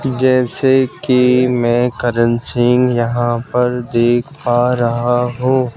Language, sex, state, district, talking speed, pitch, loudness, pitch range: Hindi, male, Madhya Pradesh, Bhopal, 115 wpm, 125 Hz, -15 LUFS, 120-125 Hz